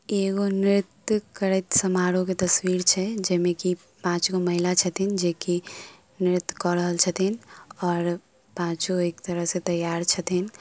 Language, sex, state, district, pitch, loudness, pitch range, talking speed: Maithili, female, Bihar, Samastipur, 180 Hz, -24 LUFS, 175-190 Hz, 165 wpm